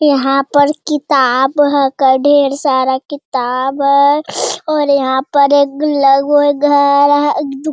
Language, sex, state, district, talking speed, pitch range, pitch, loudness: Hindi, male, Bihar, Jamui, 130 wpm, 275-290 Hz, 285 Hz, -12 LUFS